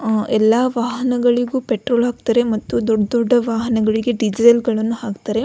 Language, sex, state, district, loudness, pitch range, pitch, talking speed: Kannada, female, Karnataka, Belgaum, -17 LUFS, 220-245 Hz, 235 Hz, 130 wpm